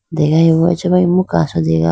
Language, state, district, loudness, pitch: Idu Mishmi, Arunachal Pradesh, Lower Dibang Valley, -14 LUFS, 165 Hz